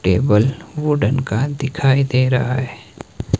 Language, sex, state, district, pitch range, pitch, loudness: Hindi, male, Himachal Pradesh, Shimla, 125-135 Hz, 130 Hz, -18 LUFS